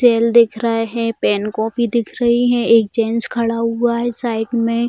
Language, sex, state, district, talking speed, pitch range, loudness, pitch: Hindi, female, Bihar, Jamui, 195 wpm, 230-235 Hz, -16 LUFS, 230 Hz